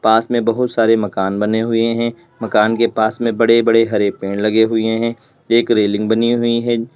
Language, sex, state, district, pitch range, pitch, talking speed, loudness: Hindi, male, Uttar Pradesh, Lalitpur, 110-115 Hz, 115 Hz, 205 wpm, -16 LUFS